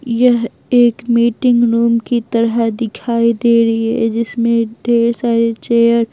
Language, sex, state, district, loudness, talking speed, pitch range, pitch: Hindi, female, Bihar, Patna, -14 LUFS, 145 wpm, 230-235 Hz, 235 Hz